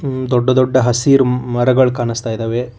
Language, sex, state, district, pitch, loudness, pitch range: Kannada, male, Karnataka, Koppal, 125 Hz, -15 LUFS, 120-130 Hz